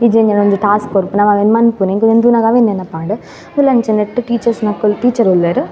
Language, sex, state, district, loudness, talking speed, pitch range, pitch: Tulu, female, Karnataka, Dakshina Kannada, -13 LUFS, 200 wpm, 205-235 Hz, 215 Hz